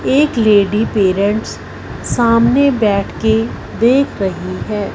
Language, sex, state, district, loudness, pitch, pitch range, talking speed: Hindi, female, Punjab, Fazilka, -14 LUFS, 215 Hz, 200-235 Hz, 110 wpm